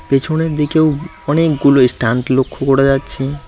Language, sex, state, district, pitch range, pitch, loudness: Bengali, male, West Bengal, Cooch Behar, 135-155 Hz, 140 Hz, -14 LUFS